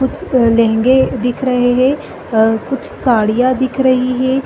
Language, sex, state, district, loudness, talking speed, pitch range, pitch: Hindi, female, Chhattisgarh, Bastar, -14 LUFS, 150 wpm, 245-260 Hz, 255 Hz